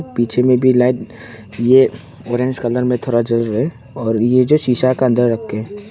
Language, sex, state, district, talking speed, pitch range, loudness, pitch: Hindi, male, Arunachal Pradesh, Longding, 180 wpm, 120-130 Hz, -16 LUFS, 125 Hz